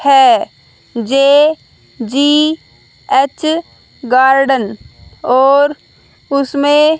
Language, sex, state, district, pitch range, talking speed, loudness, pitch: Hindi, female, Haryana, Rohtak, 265-300 Hz, 60 wpm, -12 LUFS, 280 Hz